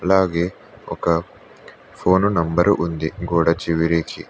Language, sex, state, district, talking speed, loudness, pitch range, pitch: Telugu, male, Telangana, Mahabubabad, 100 wpm, -20 LUFS, 85-95 Hz, 85 Hz